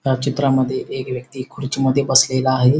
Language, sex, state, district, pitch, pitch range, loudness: Marathi, male, Maharashtra, Sindhudurg, 130 Hz, 130-135 Hz, -18 LUFS